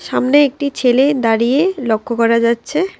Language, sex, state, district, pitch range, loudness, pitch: Bengali, female, West Bengal, Alipurduar, 230-285 Hz, -15 LUFS, 255 Hz